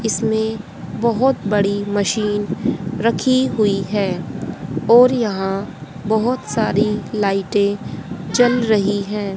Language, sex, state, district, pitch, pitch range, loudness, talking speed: Hindi, female, Haryana, Rohtak, 210 Hz, 200-225 Hz, -18 LUFS, 95 wpm